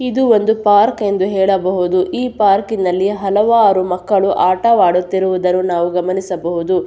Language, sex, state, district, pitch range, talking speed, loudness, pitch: Kannada, female, Karnataka, Belgaum, 180-210 Hz, 105 wpm, -14 LUFS, 195 Hz